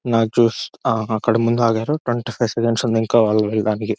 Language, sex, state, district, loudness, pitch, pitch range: Telugu, male, Telangana, Nalgonda, -19 LUFS, 115 Hz, 110-120 Hz